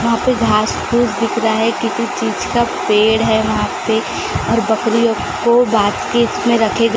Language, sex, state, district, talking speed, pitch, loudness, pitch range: Hindi, female, Maharashtra, Gondia, 180 wpm, 230 Hz, -15 LUFS, 220-235 Hz